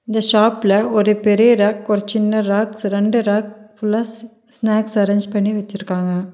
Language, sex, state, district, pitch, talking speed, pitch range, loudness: Tamil, female, Tamil Nadu, Nilgiris, 210 Hz, 140 wpm, 205-220 Hz, -17 LUFS